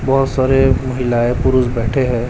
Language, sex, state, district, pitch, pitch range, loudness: Hindi, male, Chhattisgarh, Raipur, 130 Hz, 120-130 Hz, -15 LUFS